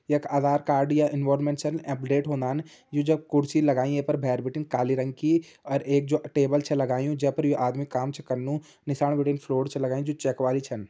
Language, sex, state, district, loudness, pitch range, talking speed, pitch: Hindi, male, Uttarakhand, Uttarkashi, -26 LUFS, 135-150 Hz, 205 wpm, 145 Hz